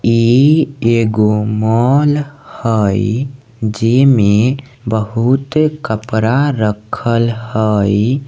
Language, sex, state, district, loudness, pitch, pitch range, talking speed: Maithili, male, Bihar, Samastipur, -14 LUFS, 115 Hz, 110-135 Hz, 70 wpm